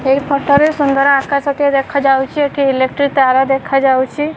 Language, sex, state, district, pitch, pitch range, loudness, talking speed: Odia, female, Odisha, Khordha, 280 Hz, 270-285 Hz, -13 LUFS, 150 wpm